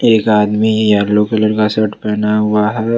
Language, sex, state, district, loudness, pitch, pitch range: Hindi, male, Jharkhand, Ranchi, -13 LUFS, 105 Hz, 105-110 Hz